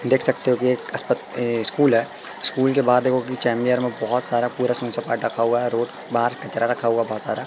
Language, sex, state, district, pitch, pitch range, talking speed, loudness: Hindi, male, Madhya Pradesh, Katni, 120 Hz, 120-125 Hz, 250 wpm, -21 LUFS